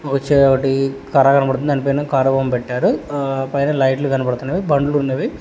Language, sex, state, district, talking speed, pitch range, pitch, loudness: Telugu, male, Telangana, Hyderabad, 90 wpm, 135-140 Hz, 135 Hz, -17 LUFS